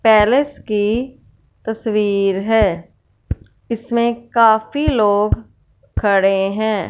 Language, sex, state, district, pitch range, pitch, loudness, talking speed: Hindi, female, Punjab, Fazilka, 205-230 Hz, 220 Hz, -17 LUFS, 80 wpm